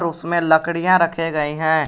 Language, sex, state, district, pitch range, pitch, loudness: Hindi, male, Jharkhand, Garhwa, 160-170 Hz, 165 Hz, -18 LUFS